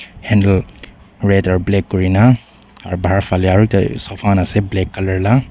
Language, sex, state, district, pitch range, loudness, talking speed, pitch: Nagamese, male, Nagaland, Dimapur, 95-105 Hz, -15 LUFS, 165 wpm, 95 Hz